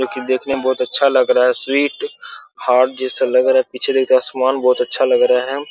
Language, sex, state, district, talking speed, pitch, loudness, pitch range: Hindi, male, Jharkhand, Sahebganj, 275 wpm, 130 Hz, -16 LUFS, 125-140 Hz